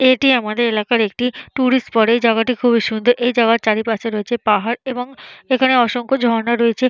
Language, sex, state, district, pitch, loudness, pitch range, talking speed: Bengali, female, Jharkhand, Jamtara, 240 Hz, -16 LUFS, 225-250 Hz, 180 wpm